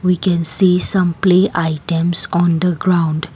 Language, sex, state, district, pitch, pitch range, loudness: English, female, Assam, Kamrup Metropolitan, 175 Hz, 165-180 Hz, -15 LUFS